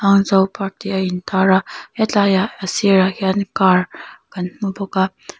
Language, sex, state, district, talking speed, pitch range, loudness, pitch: Mizo, female, Mizoram, Aizawl, 180 wpm, 190-200 Hz, -17 LUFS, 190 Hz